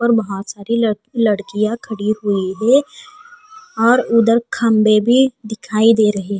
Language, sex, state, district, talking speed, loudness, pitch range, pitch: Hindi, female, Haryana, Charkhi Dadri, 140 wpm, -16 LUFS, 215-240 Hz, 225 Hz